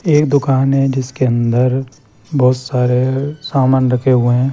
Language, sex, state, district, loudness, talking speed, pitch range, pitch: Hindi, male, Chandigarh, Chandigarh, -15 LUFS, 145 wpm, 125-135 Hz, 130 Hz